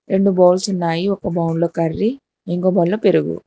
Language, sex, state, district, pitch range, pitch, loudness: Telugu, female, Telangana, Hyderabad, 170-200 Hz, 185 Hz, -17 LUFS